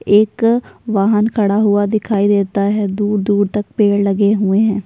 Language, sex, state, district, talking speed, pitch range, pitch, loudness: Hindi, female, Uttar Pradesh, Jyotiba Phule Nagar, 160 wpm, 200-215 Hz, 205 Hz, -15 LUFS